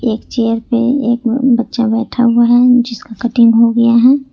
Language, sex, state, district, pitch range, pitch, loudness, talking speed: Hindi, female, Jharkhand, Ranchi, 230-245 Hz, 235 Hz, -12 LUFS, 180 wpm